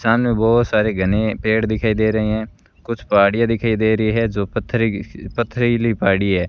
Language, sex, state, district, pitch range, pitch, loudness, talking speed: Hindi, female, Rajasthan, Bikaner, 105-115 Hz, 110 Hz, -18 LUFS, 195 wpm